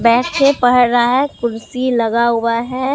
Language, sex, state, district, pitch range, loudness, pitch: Hindi, female, Bihar, Katihar, 235-255 Hz, -15 LUFS, 245 Hz